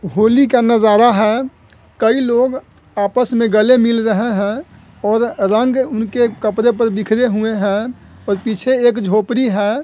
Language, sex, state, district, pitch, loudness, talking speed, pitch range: Hindi, male, Bihar, Sitamarhi, 225 Hz, -15 LUFS, 145 wpm, 215-245 Hz